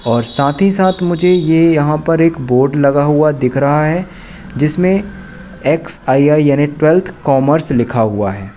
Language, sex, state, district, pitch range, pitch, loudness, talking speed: Hindi, male, Madhya Pradesh, Katni, 140-175 Hz, 150 Hz, -13 LUFS, 160 wpm